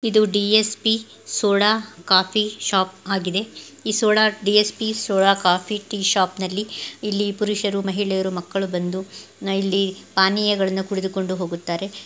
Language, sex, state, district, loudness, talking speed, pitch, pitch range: Kannada, female, Karnataka, Gulbarga, -21 LUFS, 105 wpm, 200 Hz, 190-210 Hz